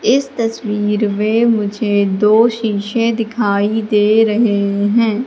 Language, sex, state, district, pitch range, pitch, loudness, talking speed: Hindi, female, Madhya Pradesh, Katni, 205-230 Hz, 215 Hz, -15 LUFS, 115 wpm